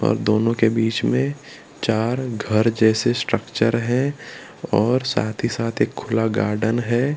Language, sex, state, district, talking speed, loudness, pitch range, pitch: Hindi, male, Gujarat, Valsad, 140 wpm, -21 LUFS, 110-120 Hz, 115 Hz